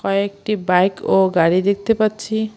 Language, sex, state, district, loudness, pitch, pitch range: Bengali, female, West Bengal, Alipurduar, -17 LUFS, 200 Hz, 190-215 Hz